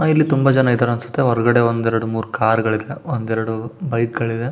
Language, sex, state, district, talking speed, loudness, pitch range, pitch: Kannada, male, Karnataka, Shimoga, 200 wpm, -18 LUFS, 115-130 Hz, 115 Hz